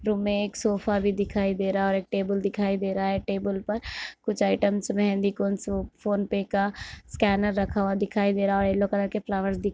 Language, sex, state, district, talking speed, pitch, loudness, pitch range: Hindi, female, Jharkhand, Jamtara, 240 wpm, 200 Hz, -26 LUFS, 195-205 Hz